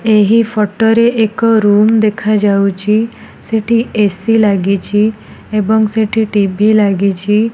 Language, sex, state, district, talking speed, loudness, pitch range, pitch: Odia, female, Odisha, Nuapada, 105 wpm, -12 LUFS, 205-225 Hz, 215 Hz